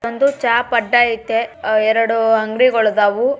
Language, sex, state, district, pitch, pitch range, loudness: Kannada, male, Karnataka, Bijapur, 230 Hz, 220-240 Hz, -15 LUFS